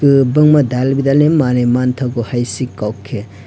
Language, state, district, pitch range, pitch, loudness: Kokborok, Tripura, West Tripura, 120-140 Hz, 125 Hz, -14 LUFS